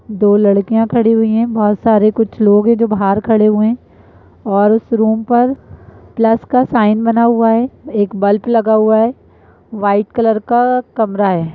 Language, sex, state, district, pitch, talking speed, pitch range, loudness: Hindi, female, Uttar Pradesh, Etah, 220 Hz, 180 wpm, 210-230 Hz, -13 LUFS